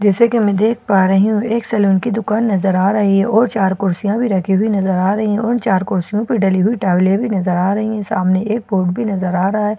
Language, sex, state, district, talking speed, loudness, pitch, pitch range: Hindi, female, Bihar, Katihar, 275 wpm, -15 LUFS, 205 Hz, 190-220 Hz